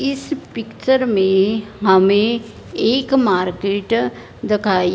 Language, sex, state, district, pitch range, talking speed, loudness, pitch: Hindi, male, Punjab, Fazilka, 190-235 Hz, 85 wpm, -17 LUFS, 210 Hz